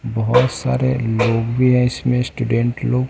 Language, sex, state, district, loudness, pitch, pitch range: Hindi, male, Bihar, West Champaran, -18 LUFS, 125 Hz, 115-125 Hz